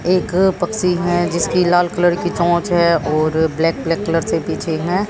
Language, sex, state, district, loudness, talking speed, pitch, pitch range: Hindi, female, Haryana, Jhajjar, -17 LUFS, 190 wpm, 175 Hz, 170-180 Hz